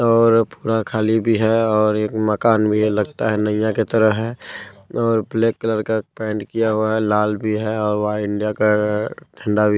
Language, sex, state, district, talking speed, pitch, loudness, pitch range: Hindi, male, Bihar, Supaul, 200 wpm, 110 Hz, -19 LUFS, 105-110 Hz